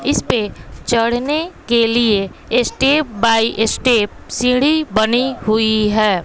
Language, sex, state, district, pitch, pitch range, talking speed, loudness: Hindi, female, Bihar, West Champaran, 230 Hz, 220-250 Hz, 105 wpm, -16 LUFS